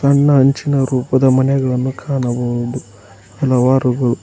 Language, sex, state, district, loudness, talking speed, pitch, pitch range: Kannada, male, Karnataka, Koppal, -15 LUFS, 100 wpm, 130 Hz, 125-135 Hz